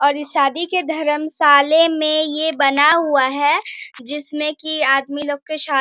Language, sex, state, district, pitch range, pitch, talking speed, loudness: Hindi, female, Bihar, Bhagalpur, 285-315 Hz, 300 Hz, 175 wpm, -17 LUFS